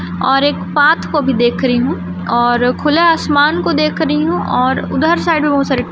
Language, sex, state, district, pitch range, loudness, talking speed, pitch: Hindi, female, Chhattisgarh, Raipur, 240-295 Hz, -14 LUFS, 205 wpm, 270 Hz